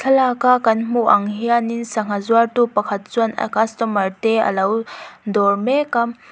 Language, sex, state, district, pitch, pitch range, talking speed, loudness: Mizo, female, Mizoram, Aizawl, 230 Hz, 210-235 Hz, 160 wpm, -18 LUFS